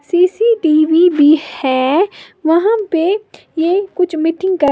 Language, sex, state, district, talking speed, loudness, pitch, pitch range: Hindi, female, Uttar Pradesh, Lalitpur, 115 wpm, -14 LUFS, 345 Hz, 315-380 Hz